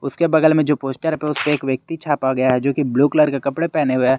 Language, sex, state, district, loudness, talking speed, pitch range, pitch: Hindi, male, Jharkhand, Garhwa, -18 LUFS, 285 wpm, 135-155 Hz, 145 Hz